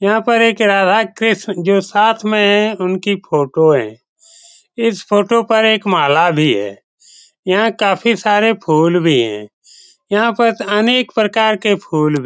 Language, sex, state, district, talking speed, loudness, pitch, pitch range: Hindi, male, Bihar, Saran, 155 wpm, -14 LUFS, 210 Hz, 185-225 Hz